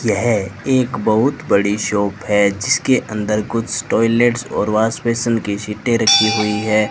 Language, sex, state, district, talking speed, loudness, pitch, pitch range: Hindi, male, Rajasthan, Bikaner, 155 wpm, -17 LUFS, 110 Hz, 105-115 Hz